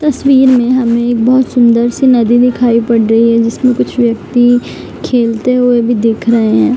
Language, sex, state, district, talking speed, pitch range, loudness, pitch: Hindi, female, Bihar, Gaya, 185 wpm, 230-250 Hz, -10 LUFS, 240 Hz